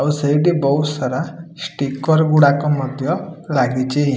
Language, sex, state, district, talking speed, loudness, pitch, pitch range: Odia, male, Odisha, Malkangiri, 115 wpm, -17 LUFS, 145 Hz, 135-160 Hz